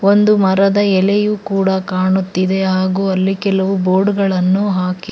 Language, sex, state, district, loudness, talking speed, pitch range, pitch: Kannada, female, Karnataka, Bangalore, -15 LUFS, 130 wpm, 185-200 Hz, 190 Hz